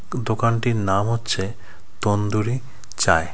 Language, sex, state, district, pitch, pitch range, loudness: Bengali, male, West Bengal, Cooch Behar, 105 Hz, 95-115 Hz, -22 LUFS